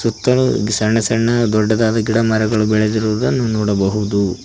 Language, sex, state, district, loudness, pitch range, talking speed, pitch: Kannada, male, Karnataka, Koppal, -16 LUFS, 105-115 Hz, 95 wpm, 110 Hz